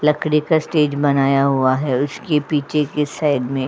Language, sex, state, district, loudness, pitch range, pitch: Hindi, female, Uttar Pradesh, Jyotiba Phule Nagar, -18 LUFS, 135-150 Hz, 145 Hz